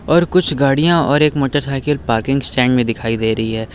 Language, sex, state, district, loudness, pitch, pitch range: Hindi, male, Uttar Pradesh, Lucknow, -15 LUFS, 135 Hz, 115-150 Hz